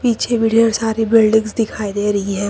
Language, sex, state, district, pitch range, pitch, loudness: Hindi, male, Uttar Pradesh, Lucknow, 205-230 Hz, 220 Hz, -16 LUFS